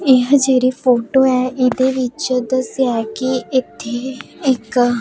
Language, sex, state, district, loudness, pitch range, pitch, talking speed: Punjabi, female, Punjab, Pathankot, -16 LUFS, 245-260 Hz, 255 Hz, 120 wpm